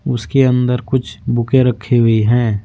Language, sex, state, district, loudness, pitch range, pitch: Hindi, male, Uttar Pradesh, Saharanpur, -15 LUFS, 115-130 Hz, 120 Hz